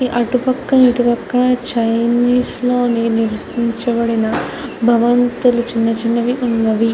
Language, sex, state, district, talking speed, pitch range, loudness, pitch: Telugu, female, Andhra Pradesh, Chittoor, 80 wpm, 230-245 Hz, -15 LUFS, 240 Hz